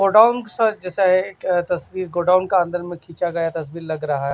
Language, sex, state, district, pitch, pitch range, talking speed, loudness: Hindi, male, Maharashtra, Washim, 180 Hz, 170-190 Hz, 205 wpm, -20 LUFS